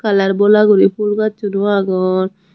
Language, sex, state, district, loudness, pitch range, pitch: Chakma, female, Tripura, Unakoti, -14 LUFS, 190-210 Hz, 200 Hz